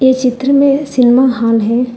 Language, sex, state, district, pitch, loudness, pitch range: Hindi, female, Telangana, Hyderabad, 255 Hz, -11 LUFS, 240-265 Hz